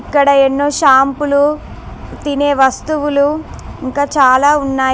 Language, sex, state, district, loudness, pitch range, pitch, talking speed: Telugu, female, Telangana, Mahabubabad, -12 LUFS, 270-290 Hz, 285 Hz, 95 wpm